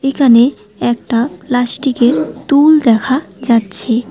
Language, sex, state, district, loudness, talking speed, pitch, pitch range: Bengali, female, West Bengal, Alipurduar, -12 LUFS, 85 wpm, 245 Hz, 235-275 Hz